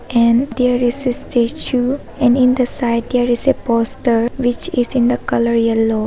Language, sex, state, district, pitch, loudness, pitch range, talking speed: English, female, Arunachal Pradesh, Papum Pare, 245 Hz, -16 LUFS, 235-250 Hz, 190 wpm